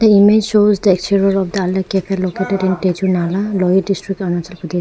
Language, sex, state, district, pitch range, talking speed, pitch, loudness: English, female, Arunachal Pradesh, Lower Dibang Valley, 185-200 Hz, 225 wpm, 190 Hz, -15 LUFS